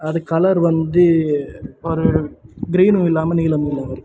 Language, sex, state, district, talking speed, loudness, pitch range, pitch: Tamil, male, Tamil Nadu, Kanyakumari, 120 wpm, -17 LUFS, 155-175 Hz, 165 Hz